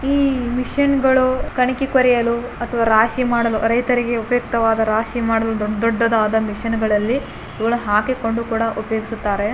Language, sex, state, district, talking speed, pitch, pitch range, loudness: Kannada, male, Karnataka, Bijapur, 125 wpm, 230 Hz, 220-250 Hz, -18 LUFS